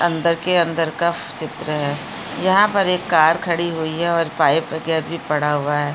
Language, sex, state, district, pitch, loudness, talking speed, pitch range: Hindi, female, Uttarakhand, Uttarkashi, 165 Hz, -18 LUFS, 200 wpm, 155-170 Hz